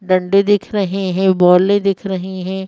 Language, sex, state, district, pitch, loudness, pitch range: Hindi, female, Madhya Pradesh, Bhopal, 190 Hz, -15 LUFS, 185-195 Hz